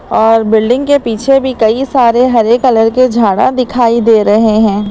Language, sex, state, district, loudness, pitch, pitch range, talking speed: Hindi, female, Uttar Pradesh, Lalitpur, -9 LUFS, 235 Hz, 220-255 Hz, 185 wpm